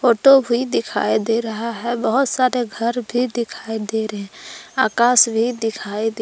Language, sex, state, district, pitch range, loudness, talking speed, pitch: Hindi, female, Jharkhand, Palamu, 220-245 Hz, -19 LUFS, 175 wpm, 235 Hz